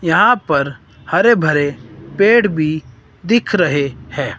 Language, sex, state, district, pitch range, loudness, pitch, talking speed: Hindi, male, Himachal Pradesh, Shimla, 140-200 Hz, -15 LUFS, 155 Hz, 125 wpm